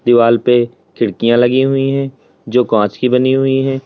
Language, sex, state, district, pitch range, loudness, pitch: Hindi, male, Uttar Pradesh, Lalitpur, 120-135 Hz, -13 LUFS, 125 Hz